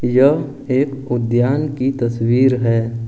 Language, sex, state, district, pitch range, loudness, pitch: Hindi, male, Jharkhand, Ranchi, 120-135 Hz, -17 LUFS, 130 Hz